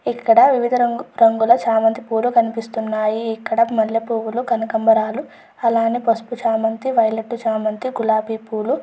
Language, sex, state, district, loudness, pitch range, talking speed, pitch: Telugu, female, Andhra Pradesh, Chittoor, -18 LUFS, 225-240 Hz, 135 wpm, 230 Hz